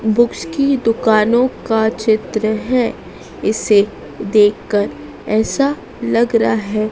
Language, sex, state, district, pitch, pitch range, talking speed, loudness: Hindi, female, Madhya Pradesh, Dhar, 220 Hz, 215-240 Hz, 105 wpm, -16 LUFS